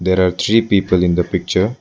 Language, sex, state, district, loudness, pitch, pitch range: English, male, Arunachal Pradesh, Lower Dibang Valley, -16 LUFS, 95 Hz, 90-100 Hz